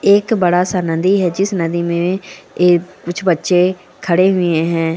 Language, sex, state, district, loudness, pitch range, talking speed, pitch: Hindi, female, Uttarakhand, Uttarkashi, -15 LUFS, 170-185 Hz, 170 wpm, 180 Hz